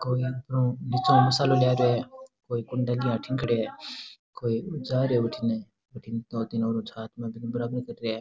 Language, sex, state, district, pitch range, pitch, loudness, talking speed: Rajasthani, male, Rajasthan, Nagaur, 115-125 Hz, 120 Hz, -27 LUFS, 195 wpm